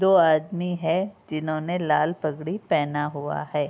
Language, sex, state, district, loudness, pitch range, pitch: Hindi, female, Uttar Pradesh, Budaun, -25 LUFS, 150-180 Hz, 155 Hz